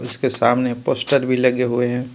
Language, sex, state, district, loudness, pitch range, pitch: Hindi, male, Jharkhand, Ranchi, -19 LUFS, 120-125 Hz, 125 Hz